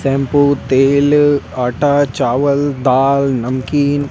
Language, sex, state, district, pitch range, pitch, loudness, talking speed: Hindi, male, Delhi, New Delhi, 135-145 Hz, 140 Hz, -14 LUFS, 90 wpm